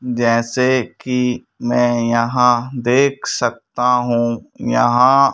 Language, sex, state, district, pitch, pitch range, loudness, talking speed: Hindi, male, Madhya Pradesh, Bhopal, 120 Hz, 120-125 Hz, -17 LUFS, 90 wpm